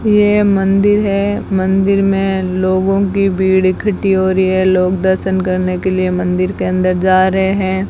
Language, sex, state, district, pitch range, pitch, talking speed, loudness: Hindi, female, Rajasthan, Bikaner, 185-195 Hz, 190 Hz, 175 wpm, -14 LUFS